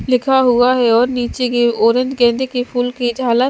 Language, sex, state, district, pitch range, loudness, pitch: Hindi, female, Bihar, Katihar, 240-255 Hz, -15 LUFS, 245 Hz